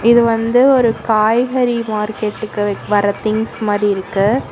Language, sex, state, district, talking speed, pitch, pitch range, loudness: Tamil, female, Tamil Nadu, Namakkal, 120 wpm, 215 Hz, 205-235 Hz, -15 LUFS